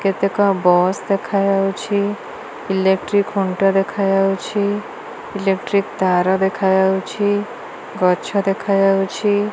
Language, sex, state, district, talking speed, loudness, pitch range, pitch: Odia, female, Odisha, Malkangiri, 90 wpm, -18 LUFS, 190-205 Hz, 195 Hz